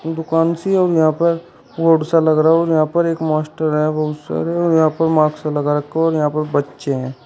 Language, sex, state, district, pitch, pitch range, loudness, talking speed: Hindi, male, Uttar Pradesh, Shamli, 155 Hz, 150-165 Hz, -17 LUFS, 240 wpm